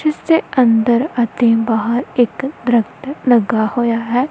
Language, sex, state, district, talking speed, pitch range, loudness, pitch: Punjabi, female, Punjab, Kapurthala, 140 wpm, 230-270 Hz, -15 LUFS, 240 Hz